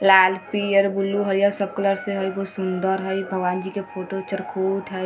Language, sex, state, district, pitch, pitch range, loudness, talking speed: Hindi, female, Bihar, Vaishali, 195 Hz, 190-195 Hz, -22 LUFS, 200 wpm